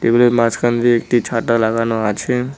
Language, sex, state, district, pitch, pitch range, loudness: Bengali, male, West Bengal, Cooch Behar, 115 Hz, 115-120 Hz, -16 LUFS